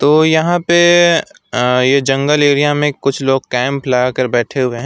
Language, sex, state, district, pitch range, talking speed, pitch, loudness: Hindi, male, West Bengal, Alipurduar, 130-150 Hz, 200 wpm, 140 Hz, -13 LUFS